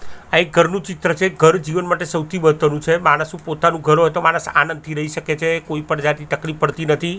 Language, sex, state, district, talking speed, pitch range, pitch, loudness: Gujarati, male, Gujarat, Gandhinagar, 210 wpm, 155-170 Hz, 160 Hz, -18 LUFS